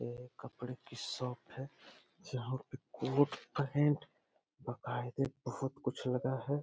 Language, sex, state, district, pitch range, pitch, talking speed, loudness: Hindi, male, Uttar Pradesh, Deoria, 125-145 Hz, 130 Hz, 125 wpm, -38 LUFS